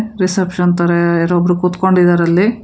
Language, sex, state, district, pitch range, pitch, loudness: Kannada, female, Karnataka, Bangalore, 175-190 Hz, 180 Hz, -13 LUFS